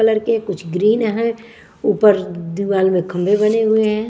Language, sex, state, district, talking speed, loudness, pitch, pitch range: Hindi, female, Bihar, West Champaran, 175 wpm, -17 LUFS, 210 Hz, 190-220 Hz